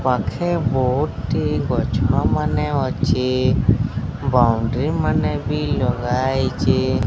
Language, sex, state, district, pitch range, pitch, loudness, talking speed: Odia, male, Odisha, Sambalpur, 125-130 Hz, 130 Hz, -20 LUFS, 85 wpm